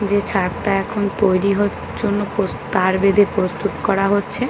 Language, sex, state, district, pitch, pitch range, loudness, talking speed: Bengali, female, West Bengal, Paschim Medinipur, 200 Hz, 195-205 Hz, -18 LUFS, 185 wpm